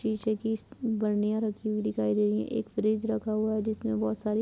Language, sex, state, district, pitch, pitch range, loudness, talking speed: Hindi, female, Uttar Pradesh, Muzaffarnagar, 215 Hz, 205-220 Hz, -29 LUFS, 245 wpm